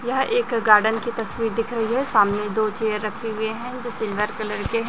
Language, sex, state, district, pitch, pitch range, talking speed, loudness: Hindi, male, Chhattisgarh, Raipur, 225 Hz, 215-235 Hz, 220 wpm, -22 LUFS